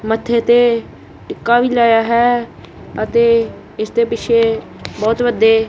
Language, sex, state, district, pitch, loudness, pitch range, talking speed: Punjabi, male, Punjab, Kapurthala, 235 Hz, -15 LUFS, 225-240 Hz, 125 wpm